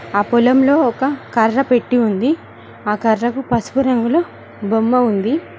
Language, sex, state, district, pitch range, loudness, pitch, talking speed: Telugu, female, Telangana, Mahabubabad, 225-270 Hz, -16 LUFS, 245 Hz, 130 wpm